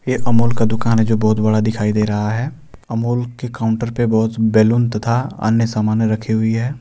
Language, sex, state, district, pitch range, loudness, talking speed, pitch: Hindi, male, Jharkhand, Deoghar, 110-120 Hz, -17 LUFS, 210 wpm, 115 Hz